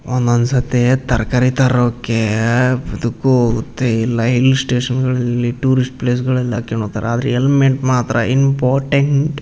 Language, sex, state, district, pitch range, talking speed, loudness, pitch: Kannada, male, Karnataka, Raichur, 120-130 Hz, 120 wpm, -16 LUFS, 125 Hz